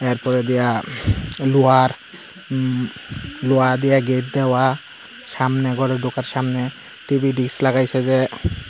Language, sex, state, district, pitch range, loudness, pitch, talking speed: Bengali, male, Tripura, Unakoti, 125-135 Hz, -19 LUFS, 130 Hz, 110 wpm